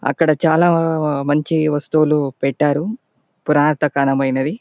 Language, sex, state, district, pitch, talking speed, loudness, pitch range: Telugu, male, Andhra Pradesh, Chittoor, 150 Hz, 90 wpm, -17 LUFS, 145-160 Hz